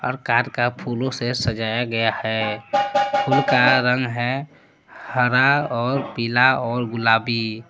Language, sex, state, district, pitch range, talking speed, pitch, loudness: Hindi, male, Jharkhand, Palamu, 115-135 Hz, 130 wpm, 120 Hz, -20 LUFS